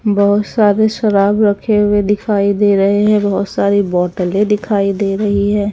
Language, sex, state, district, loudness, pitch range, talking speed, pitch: Hindi, female, Haryana, Charkhi Dadri, -14 LUFS, 200-210 Hz, 165 wpm, 205 Hz